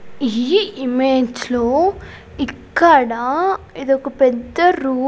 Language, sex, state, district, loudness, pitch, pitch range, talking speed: Telugu, female, Andhra Pradesh, Sri Satya Sai, -17 LUFS, 265 Hz, 250-335 Hz, 105 wpm